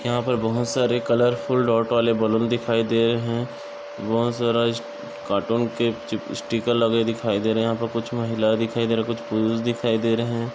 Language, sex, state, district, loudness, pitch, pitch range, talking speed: Bhojpuri, male, Uttar Pradesh, Gorakhpur, -23 LUFS, 115 Hz, 115-120 Hz, 220 wpm